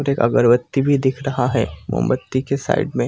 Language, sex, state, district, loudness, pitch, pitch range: Hindi, male, Bihar, Purnia, -19 LUFS, 130 Hz, 115-140 Hz